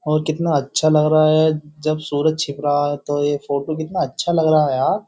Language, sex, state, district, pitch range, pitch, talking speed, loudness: Hindi, male, Uttar Pradesh, Jyotiba Phule Nagar, 145-155 Hz, 155 Hz, 235 wpm, -18 LUFS